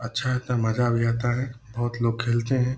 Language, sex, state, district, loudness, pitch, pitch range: Hindi, male, Bihar, Purnia, -25 LUFS, 120 Hz, 115-125 Hz